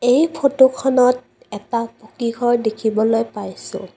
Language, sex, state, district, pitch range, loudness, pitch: Assamese, female, Assam, Kamrup Metropolitan, 220-255 Hz, -18 LUFS, 235 Hz